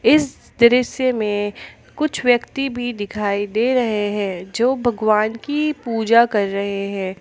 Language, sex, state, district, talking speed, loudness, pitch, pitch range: Hindi, female, Jharkhand, Palamu, 140 wpm, -19 LUFS, 225 Hz, 205-250 Hz